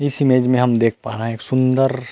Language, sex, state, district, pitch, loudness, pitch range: Chhattisgarhi, male, Chhattisgarh, Rajnandgaon, 125 Hz, -17 LUFS, 115-130 Hz